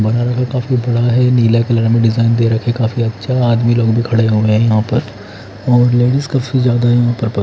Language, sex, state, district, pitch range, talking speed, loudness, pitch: Hindi, male, Haryana, Charkhi Dadri, 115-125 Hz, 170 wpm, -13 LUFS, 120 Hz